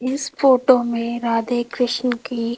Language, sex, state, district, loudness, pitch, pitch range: Hindi, female, Rajasthan, Jaipur, -19 LUFS, 245 Hz, 235-255 Hz